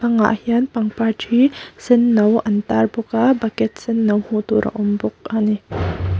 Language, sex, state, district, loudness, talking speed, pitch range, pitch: Mizo, female, Mizoram, Aizawl, -18 LUFS, 155 wpm, 210-230 Hz, 220 Hz